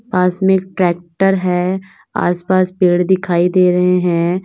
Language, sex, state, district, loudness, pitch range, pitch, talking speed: Hindi, female, Uttar Pradesh, Lalitpur, -15 LUFS, 180-190 Hz, 180 Hz, 160 wpm